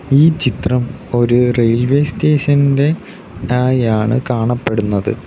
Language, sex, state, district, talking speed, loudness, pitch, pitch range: Malayalam, male, Kerala, Kollam, 90 wpm, -15 LUFS, 125 Hz, 120-140 Hz